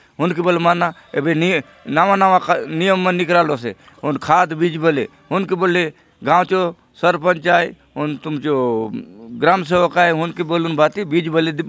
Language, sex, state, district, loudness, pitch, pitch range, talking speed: Halbi, male, Chhattisgarh, Bastar, -17 LUFS, 170 Hz, 155-180 Hz, 160 wpm